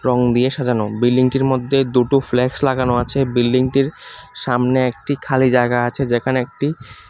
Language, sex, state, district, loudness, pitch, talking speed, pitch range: Bengali, male, Tripura, West Tripura, -17 LUFS, 130 Hz, 145 wpm, 120-135 Hz